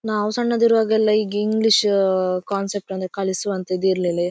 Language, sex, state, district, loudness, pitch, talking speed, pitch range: Kannada, female, Karnataka, Dakshina Kannada, -20 LUFS, 200 Hz, 155 wpm, 185-215 Hz